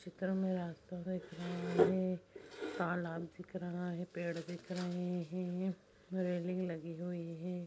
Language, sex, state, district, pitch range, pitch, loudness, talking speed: Hindi, female, Bihar, Vaishali, 175-185 Hz, 180 Hz, -40 LUFS, 140 wpm